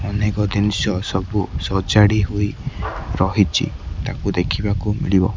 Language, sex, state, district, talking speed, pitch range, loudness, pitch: Odia, male, Odisha, Khordha, 90 wpm, 95-105 Hz, -20 LUFS, 100 Hz